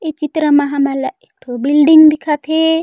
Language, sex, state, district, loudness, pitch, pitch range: Chhattisgarhi, female, Chhattisgarh, Raigarh, -12 LUFS, 300 Hz, 285-315 Hz